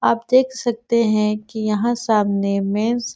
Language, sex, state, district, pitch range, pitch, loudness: Hindi, female, Chhattisgarh, Sarguja, 210-240 Hz, 225 Hz, -19 LUFS